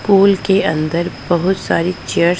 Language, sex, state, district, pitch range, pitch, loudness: Hindi, female, Punjab, Pathankot, 170-195 Hz, 180 Hz, -16 LUFS